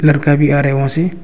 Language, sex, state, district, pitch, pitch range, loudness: Hindi, male, Arunachal Pradesh, Longding, 145 Hz, 145-155 Hz, -13 LUFS